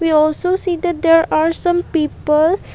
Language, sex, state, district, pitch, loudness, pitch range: English, female, Assam, Kamrup Metropolitan, 330 Hz, -16 LUFS, 310-350 Hz